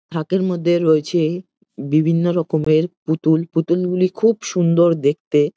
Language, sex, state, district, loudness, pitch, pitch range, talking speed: Bengali, male, West Bengal, Jalpaiguri, -18 LUFS, 170 Hz, 160-175 Hz, 120 wpm